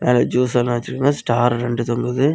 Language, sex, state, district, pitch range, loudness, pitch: Tamil, male, Tamil Nadu, Kanyakumari, 120-125 Hz, -19 LUFS, 125 Hz